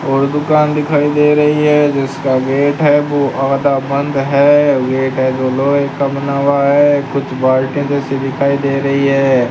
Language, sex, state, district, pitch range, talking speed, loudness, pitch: Hindi, male, Rajasthan, Bikaner, 135-145 Hz, 175 wpm, -13 LUFS, 140 Hz